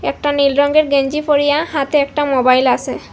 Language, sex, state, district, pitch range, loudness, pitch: Bengali, female, Assam, Hailakandi, 275-295 Hz, -15 LUFS, 285 Hz